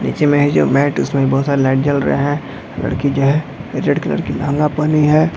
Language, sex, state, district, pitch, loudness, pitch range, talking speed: Hindi, male, Jharkhand, Jamtara, 145 Hz, -16 LUFS, 140-150 Hz, 235 wpm